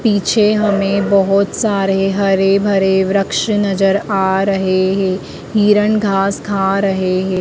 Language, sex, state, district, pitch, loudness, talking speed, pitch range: Hindi, female, Madhya Pradesh, Dhar, 195 Hz, -14 LUFS, 130 wpm, 195-205 Hz